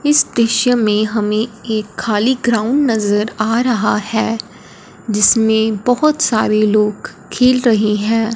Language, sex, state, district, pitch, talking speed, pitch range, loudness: Hindi, female, Punjab, Fazilka, 220 Hz, 130 wpm, 215-240 Hz, -15 LUFS